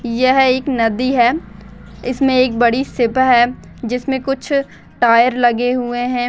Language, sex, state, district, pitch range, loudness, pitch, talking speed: Hindi, female, Bihar, Bhagalpur, 235-260 Hz, -15 LUFS, 245 Hz, 145 wpm